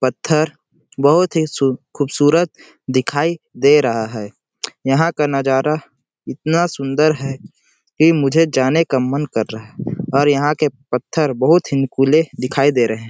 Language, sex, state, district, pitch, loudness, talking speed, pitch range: Hindi, male, Chhattisgarh, Sarguja, 140 Hz, -17 LUFS, 160 wpm, 130-155 Hz